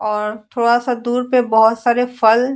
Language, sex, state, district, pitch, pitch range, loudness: Hindi, female, Uttar Pradesh, Etah, 240 Hz, 220-245 Hz, -16 LUFS